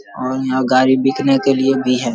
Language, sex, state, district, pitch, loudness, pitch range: Hindi, male, Bihar, Vaishali, 130 Hz, -15 LUFS, 130-135 Hz